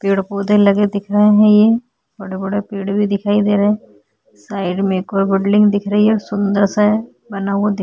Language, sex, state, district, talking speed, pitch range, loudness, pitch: Hindi, female, Uttarakhand, Tehri Garhwal, 215 wpm, 195-210 Hz, -15 LUFS, 205 Hz